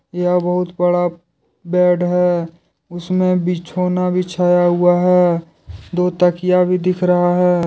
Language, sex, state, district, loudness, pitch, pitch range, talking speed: Hindi, male, Jharkhand, Deoghar, -16 LUFS, 180 Hz, 175-180 Hz, 125 wpm